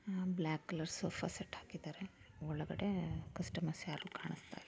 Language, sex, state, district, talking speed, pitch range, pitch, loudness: Kannada, female, Karnataka, Bijapur, 130 wpm, 155-185 Hz, 170 Hz, -43 LUFS